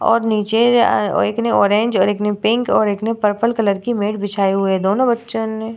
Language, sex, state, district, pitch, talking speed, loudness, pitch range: Hindi, female, Bihar, Vaishali, 220 Hz, 240 wpm, -17 LUFS, 205-230 Hz